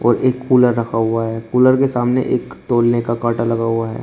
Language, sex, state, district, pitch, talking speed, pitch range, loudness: Hindi, male, Uttar Pradesh, Shamli, 120 Hz, 240 wpm, 115-125 Hz, -16 LUFS